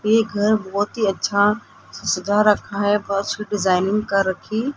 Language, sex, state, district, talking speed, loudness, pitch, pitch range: Hindi, female, Rajasthan, Jaipur, 165 wpm, -20 LUFS, 205 Hz, 195-210 Hz